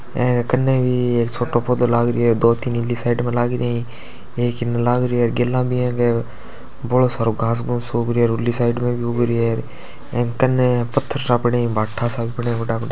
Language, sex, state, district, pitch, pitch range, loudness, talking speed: Hindi, male, Rajasthan, Churu, 120 Hz, 120-125 Hz, -19 LUFS, 225 wpm